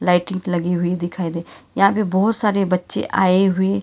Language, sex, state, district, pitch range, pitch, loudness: Hindi, female, Karnataka, Bangalore, 175-195 Hz, 185 Hz, -19 LUFS